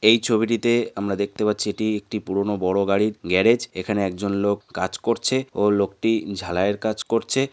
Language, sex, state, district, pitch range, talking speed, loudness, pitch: Bengali, male, West Bengal, North 24 Parganas, 100-115 Hz, 165 wpm, -22 LUFS, 105 Hz